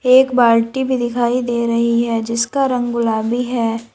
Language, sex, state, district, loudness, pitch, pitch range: Hindi, female, Uttar Pradesh, Lalitpur, -16 LUFS, 240 Hz, 230-250 Hz